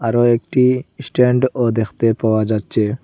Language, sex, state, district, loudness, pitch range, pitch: Bengali, male, Assam, Hailakandi, -17 LUFS, 110-125 Hz, 115 Hz